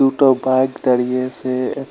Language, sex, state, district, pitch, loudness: Bengali, male, West Bengal, Cooch Behar, 130 Hz, -17 LUFS